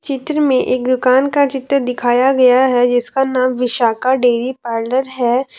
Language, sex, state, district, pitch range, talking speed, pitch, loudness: Hindi, female, Jharkhand, Deoghar, 245-270 Hz, 160 wpm, 255 Hz, -15 LUFS